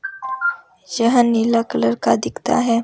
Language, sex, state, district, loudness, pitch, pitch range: Hindi, female, Rajasthan, Jaipur, -18 LUFS, 235 Hz, 225-260 Hz